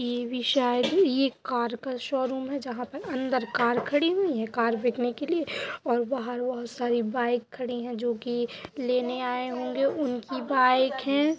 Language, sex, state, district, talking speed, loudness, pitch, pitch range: Hindi, female, Uttar Pradesh, Budaun, 175 wpm, -27 LUFS, 250 Hz, 240-270 Hz